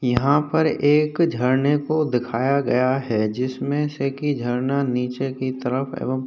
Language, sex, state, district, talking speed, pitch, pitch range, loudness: Hindi, male, Uttar Pradesh, Hamirpur, 165 wpm, 135 Hz, 125-145 Hz, -21 LUFS